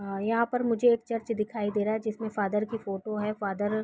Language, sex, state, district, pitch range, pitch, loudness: Hindi, female, Chhattisgarh, Raigarh, 210-230 Hz, 215 Hz, -29 LUFS